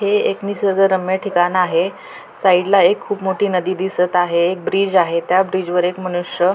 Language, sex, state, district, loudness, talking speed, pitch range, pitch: Marathi, female, Maharashtra, Pune, -17 LUFS, 190 wpm, 180-195 Hz, 185 Hz